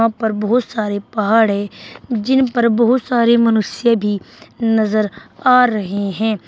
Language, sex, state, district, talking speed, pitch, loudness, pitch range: Hindi, female, Uttar Pradesh, Shamli, 140 wpm, 225 Hz, -16 LUFS, 210-235 Hz